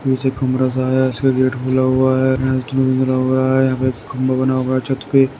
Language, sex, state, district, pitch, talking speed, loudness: Hindi, male, Uttar Pradesh, Jyotiba Phule Nagar, 130 Hz, 180 wpm, -17 LUFS